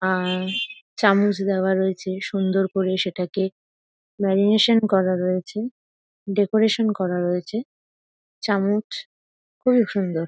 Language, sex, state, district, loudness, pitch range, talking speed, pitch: Bengali, female, West Bengal, Paschim Medinipur, -22 LUFS, 185-215 Hz, 95 wpm, 195 Hz